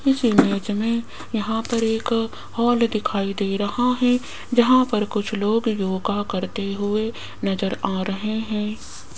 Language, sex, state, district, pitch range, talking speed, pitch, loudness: Hindi, female, Rajasthan, Jaipur, 205-235 Hz, 145 wpm, 215 Hz, -22 LUFS